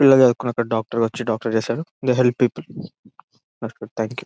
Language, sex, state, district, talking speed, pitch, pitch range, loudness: Telugu, male, Telangana, Nalgonda, 155 wpm, 120 Hz, 115-125 Hz, -21 LUFS